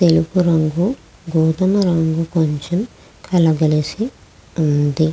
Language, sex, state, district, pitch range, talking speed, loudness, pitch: Telugu, female, Andhra Pradesh, Krishna, 160-180 Hz, 95 wpm, -17 LUFS, 165 Hz